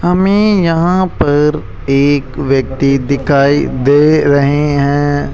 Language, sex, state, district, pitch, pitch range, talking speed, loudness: Hindi, male, Rajasthan, Jaipur, 145 Hz, 140-160 Hz, 100 wpm, -12 LUFS